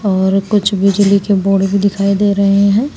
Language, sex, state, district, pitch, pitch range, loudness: Hindi, female, Uttar Pradesh, Saharanpur, 200 Hz, 195-200 Hz, -13 LUFS